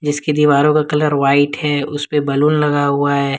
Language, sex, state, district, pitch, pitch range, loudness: Hindi, male, Jharkhand, Ranchi, 145 Hz, 145-150 Hz, -15 LUFS